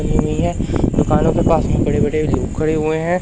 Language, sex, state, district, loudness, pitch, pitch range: Hindi, male, Madhya Pradesh, Umaria, -17 LUFS, 155 Hz, 120-155 Hz